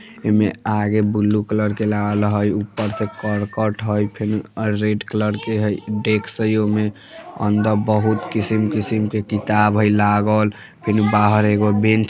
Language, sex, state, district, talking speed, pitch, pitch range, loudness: Bajjika, female, Bihar, Vaishali, 170 wpm, 105 Hz, 105-110 Hz, -19 LUFS